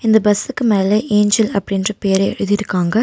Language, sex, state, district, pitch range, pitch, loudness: Tamil, female, Tamil Nadu, Nilgiris, 200-220 Hz, 210 Hz, -16 LUFS